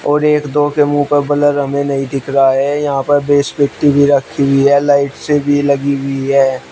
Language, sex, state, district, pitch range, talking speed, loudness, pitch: Hindi, male, Uttar Pradesh, Shamli, 140-145 Hz, 230 wpm, -13 LUFS, 140 Hz